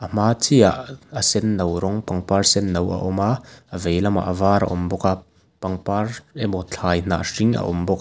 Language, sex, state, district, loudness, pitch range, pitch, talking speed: Mizo, male, Mizoram, Aizawl, -20 LUFS, 90-110 Hz, 100 Hz, 225 wpm